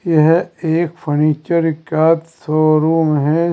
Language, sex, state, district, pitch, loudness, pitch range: Hindi, male, Uttar Pradesh, Saharanpur, 160 Hz, -15 LUFS, 155-165 Hz